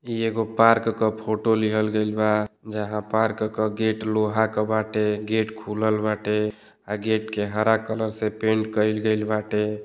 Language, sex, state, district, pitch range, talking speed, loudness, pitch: Bhojpuri, male, Uttar Pradesh, Deoria, 105-110 Hz, 170 wpm, -24 LUFS, 110 Hz